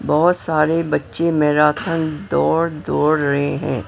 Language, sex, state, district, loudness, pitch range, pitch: Hindi, female, Maharashtra, Mumbai Suburban, -18 LUFS, 150-165 Hz, 155 Hz